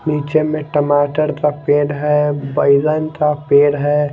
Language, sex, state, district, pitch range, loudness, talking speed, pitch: Hindi, male, Bihar, Kaimur, 145-150 Hz, -15 LUFS, 145 wpm, 150 Hz